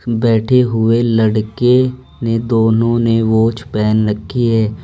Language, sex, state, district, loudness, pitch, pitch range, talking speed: Hindi, male, Uttar Pradesh, Saharanpur, -14 LUFS, 115 Hz, 110-120 Hz, 125 wpm